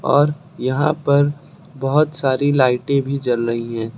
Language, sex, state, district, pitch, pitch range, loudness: Hindi, male, Uttar Pradesh, Lucknow, 140 Hz, 130-150 Hz, -18 LUFS